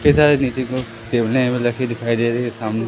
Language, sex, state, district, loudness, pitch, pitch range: Hindi, male, Madhya Pradesh, Katni, -19 LUFS, 120 Hz, 115-130 Hz